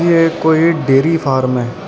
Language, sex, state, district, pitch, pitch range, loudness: Punjabi, male, Karnataka, Bangalore, 160 Hz, 135-165 Hz, -13 LUFS